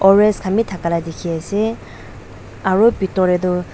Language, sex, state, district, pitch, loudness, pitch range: Nagamese, female, Nagaland, Dimapur, 180 Hz, -17 LUFS, 160-200 Hz